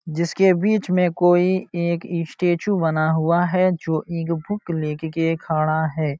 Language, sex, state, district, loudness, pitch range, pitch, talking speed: Hindi, male, Uttar Pradesh, Jalaun, -21 LUFS, 160-180 Hz, 170 Hz, 155 wpm